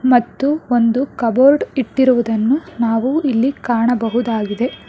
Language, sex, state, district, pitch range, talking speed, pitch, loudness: Kannada, female, Karnataka, Bangalore, 230-265 Hz, 85 wpm, 245 Hz, -16 LUFS